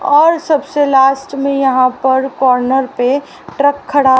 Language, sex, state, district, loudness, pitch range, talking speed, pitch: Hindi, female, Haryana, Rohtak, -13 LUFS, 260-285 Hz, 140 wpm, 275 Hz